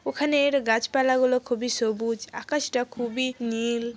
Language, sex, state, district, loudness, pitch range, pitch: Bengali, female, West Bengal, Jhargram, -25 LUFS, 235-260 Hz, 245 Hz